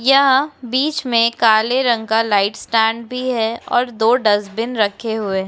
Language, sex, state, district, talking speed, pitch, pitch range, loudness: Hindi, female, Uttar Pradesh, Hamirpur, 175 wpm, 230 Hz, 220-250 Hz, -17 LUFS